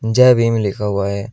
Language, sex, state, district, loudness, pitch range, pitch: Hindi, male, Uttar Pradesh, Shamli, -15 LUFS, 100-115 Hz, 110 Hz